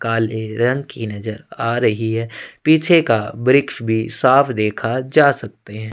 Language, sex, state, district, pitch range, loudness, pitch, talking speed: Hindi, male, Chhattisgarh, Sukma, 110-130 Hz, -17 LUFS, 115 Hz, 160 wpm